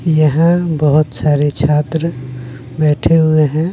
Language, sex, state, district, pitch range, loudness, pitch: Hindi, male, Bihar, West Champaran, 145-160 Hz, -13 LUFS, 150 Hz